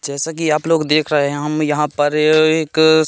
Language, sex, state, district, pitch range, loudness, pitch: Hindi, male, Madhya Pradesh, Katni, 150-160 Hz, -16 LUFS, 155 Hz